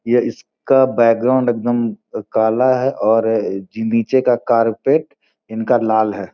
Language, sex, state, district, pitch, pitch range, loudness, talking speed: Hindi, male, Bihar, Gopalganj, 115 Hz, 110-125 Hz, -16 LUFS, 125 wpm